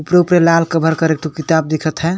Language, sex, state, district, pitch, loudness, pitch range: Sadri, male, Chhattisgarh, Jashpur, 160 Hz, -14 LUFS, 155-165 Hz